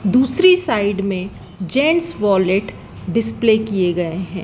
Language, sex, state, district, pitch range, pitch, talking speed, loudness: Hindi, female, Madhya Pradesh, Dhar, 185-245 Hz, 200 Hz, 120 wpm, -17 LUFS